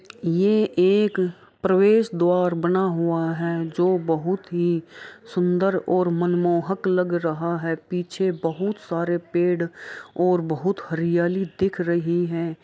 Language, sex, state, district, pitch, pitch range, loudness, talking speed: Hindi, female, Bihar, Araria, 175 Hz, 170-185 Hz, -22 LUFS, 120 wpm